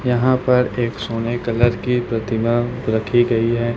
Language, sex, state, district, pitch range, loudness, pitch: Hindi, male, Chhattisgarh, Raipur, 115-125 Hz, -19 LUFS, 120 Hz